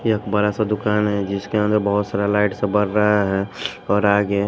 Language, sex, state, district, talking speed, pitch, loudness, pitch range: Hindi, male, Punjab, Pathankot, 215 wpm, 105 Hz, -20 LUFS, 100-105 Hz